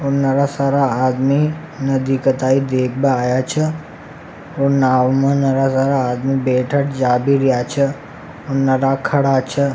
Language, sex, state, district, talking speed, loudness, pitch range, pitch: Rajasthani, male, Rajasthan, Nagaur, 145 wpm, -17 LUFS, 130-140 Hz, 135 Hz